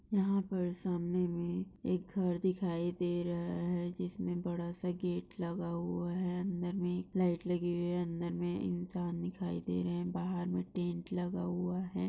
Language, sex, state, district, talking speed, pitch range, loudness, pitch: Hindi, female, Maharashtra, Sindhudurg, 180 wpm, 175-180 Hz, -37 LUFS, 175 Hz